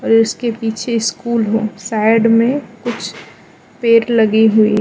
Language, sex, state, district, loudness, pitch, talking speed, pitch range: Hindi, female, Mizoram, Aizawl, -15 LUFS, 225 Hz, 135 wpm, 220-235 Hz